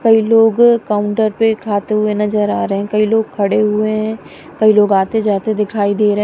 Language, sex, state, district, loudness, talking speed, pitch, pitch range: Hindi, female, Punjab, Kapurthala, -14 LUFS, 210 wpm, 215 Hz, 205-220 Hz